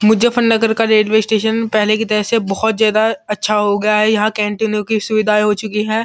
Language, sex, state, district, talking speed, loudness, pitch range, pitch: Hindi, male, Uttar Pradesh, Muzaffarnagar, 210 wpm, -15 LUFS, 210-220 Hz, 215 Hz